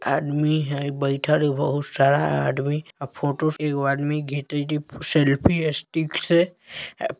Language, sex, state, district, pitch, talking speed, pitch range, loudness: Bajjika, male, Bihar, Vaishali, 145 Hz, 150 wpm, 140-155 Hz, -23 LUFS